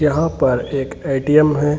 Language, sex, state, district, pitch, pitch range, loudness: Hindi, male, Bihar, Gaya, 150 Hz, 140-150 Hz, -17 LUFS